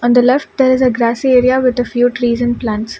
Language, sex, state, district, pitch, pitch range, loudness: English, female, Karnataka, Bangalore, 245 Hz, 240-255 Hz, -13 LUFS